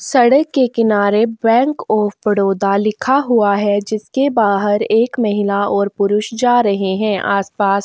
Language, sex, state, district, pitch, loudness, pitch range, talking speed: Hindi, female, Goa, North and South Goa, 210 Hz, -15 LUFS, 200-240 Hz, 155 wpm